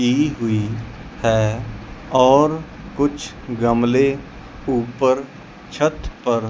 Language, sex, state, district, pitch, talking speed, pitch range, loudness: Hindi, male, Chandigarh, Chandigarh, 130 Hz, 85 wpm, 115-145 Hz, -19 LUFS